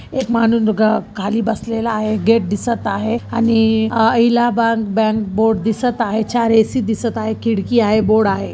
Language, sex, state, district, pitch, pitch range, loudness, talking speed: Marathi, female, Maharashtra, Chandrapur, 225 Hz, 220-230 Hz, -16 LUFS, 170 wpm